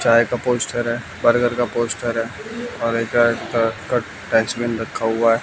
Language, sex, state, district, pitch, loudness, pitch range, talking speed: Hindi, male, Bihar, West Champaran, 115 Hz, -20 LUFS, 115-120 Hz, 175 wpm